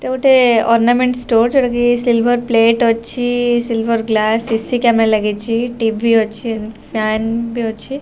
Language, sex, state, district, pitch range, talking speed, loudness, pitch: Odia, female, Odisha, Khordha, 225-245 Hz, 135 wpm, -15 LUFS, 230 Hz